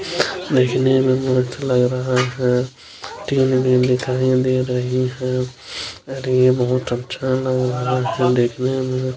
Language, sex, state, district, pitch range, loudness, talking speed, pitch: Hindi, male, Bihar, Araria, 125-130 Hz, -19 LUFS, 125 wpm, 130 Hz